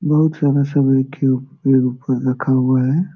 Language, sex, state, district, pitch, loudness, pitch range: Hindi, male, Bihar, Jamui, 135 Hz, -17 LUFS, 130-150 Hz